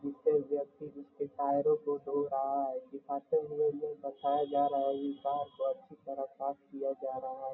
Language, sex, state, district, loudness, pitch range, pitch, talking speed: Hindi, male, Bihar, Gopalganj, -35 LUFS, 135-150 Hz, 140 Hz, 165 wpm